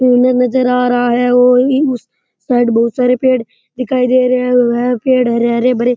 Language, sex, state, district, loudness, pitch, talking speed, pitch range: Rajasthani, male, Rajasthan, Churu, -12 LUFS, 250 Hz, 200 wpm, 245-255 Hz